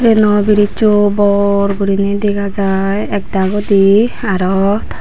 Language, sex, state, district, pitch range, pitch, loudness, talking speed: Chakma, female, Tripura, Unakoti, 195-205 Hz, 200 Hz, -13 LUFS, 130 wpm